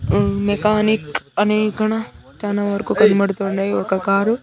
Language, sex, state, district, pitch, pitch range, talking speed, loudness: Telugu, male, Andhra Pradesh, Sri Satya Sai, 205 Hz, 195-215 Hz, 135 wpm, -18 LUFS